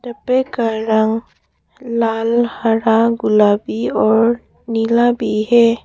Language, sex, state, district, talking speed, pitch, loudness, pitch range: Hindi, female, Arunachal Pradesh, Papum Pare, 90 wpm, 230 Hz, -16 LUFS, 220-240 Hz